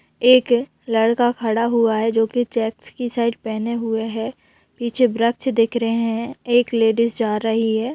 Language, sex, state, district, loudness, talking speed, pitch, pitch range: Hindi, female, Bihar, Araria, -19 LUFS, 175 wpm, 230 Hz, 225-240 Hz